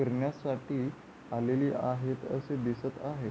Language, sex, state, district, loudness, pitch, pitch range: Marathi, male, Maharashtra, Pune, -34 LUFS, 130 Hz, 125-140 Hz